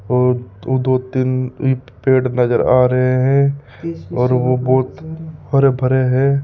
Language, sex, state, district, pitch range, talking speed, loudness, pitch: Hindi, male, Rajasthan, Jaipur, 125-135 Hz, 150 wpm, -16 LUFS, 130 Hz